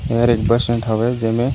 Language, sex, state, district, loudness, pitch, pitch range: Chhattisgarhi, male, Chhattisgarh, Raigarh, -17 LUFS, 120 Hz, 115-120 Hz